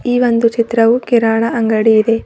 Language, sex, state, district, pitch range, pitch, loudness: Kannada, female, Karnataka, Bidar, 225-235 Hz, 230 Hz, -13 LUFS